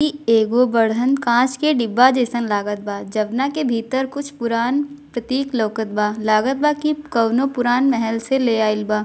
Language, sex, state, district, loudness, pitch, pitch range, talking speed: Bhojpuri, female, Bihar, Gopalganj, -19 LUFS, 240 Hz, 220-270 Hz, 180 wpm